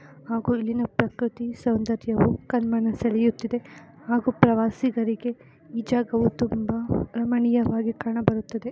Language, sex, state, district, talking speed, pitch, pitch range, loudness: Kannada, female, Karnataka, Shimoga, 90 wpm, 230 Hz, 225-240 Hz, -25 LUFS